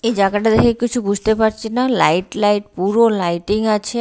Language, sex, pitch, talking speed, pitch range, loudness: Bengali, female, 215 Hz, 165 wpm, 200-230 Hz, -16 LUFS